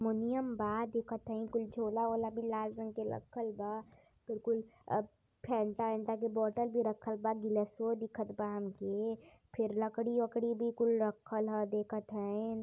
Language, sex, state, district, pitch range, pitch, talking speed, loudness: Hindi, female, Uttar Pradesh, Varanasi, 215-230 Hz, 220 Hz, 165 wpm, -37 LUFS